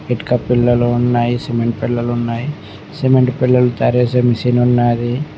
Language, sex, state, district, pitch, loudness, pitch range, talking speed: Telugu, male, Telangana, Mahabubabad, 120 Hz, -15 LUFS, 120-125 Hz, 135 wpm